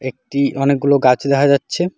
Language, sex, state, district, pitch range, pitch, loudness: Bengali, male, West Bengal, Alipurduar, 135-140 Hz, 140 Hz, -15 LUFS